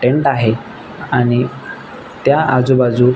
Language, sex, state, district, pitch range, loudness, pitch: Marathi, male, Maharashtra, Nagpur, 125-135 Hz, -15 LUFS, 125 Hz